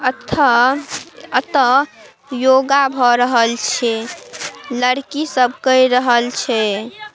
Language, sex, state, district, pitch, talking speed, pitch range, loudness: Maithili, female, Bihar, Darbhanga, 255 Hz, 100 wpm, 240-275 Hz, -15 LUFS